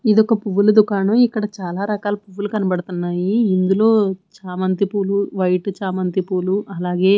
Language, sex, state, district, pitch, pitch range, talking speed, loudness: Telugu, female, Andhra Pradesh, Manyam, 195 Hz, 185-210 Hz, 115 wpm, -18 LUFS